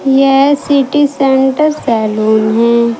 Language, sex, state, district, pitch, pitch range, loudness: Hindi, female, Uttar Pradesh, Saharanpur, 270 Hz, 230-280 Hz, -11 LUFS